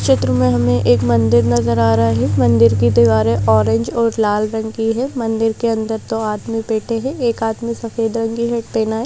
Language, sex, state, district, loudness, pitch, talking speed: Hindi, female, Madhya Pradesh, Bhopal, -16 LUFS, 220 Hz, 220 wpm